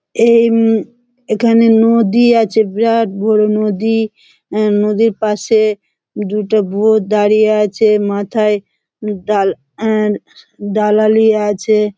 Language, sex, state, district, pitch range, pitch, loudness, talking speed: Bengali, female, West Bengal, Malda, 210-225 Hz, 215 Hz, -13 LUFS, 85 wpm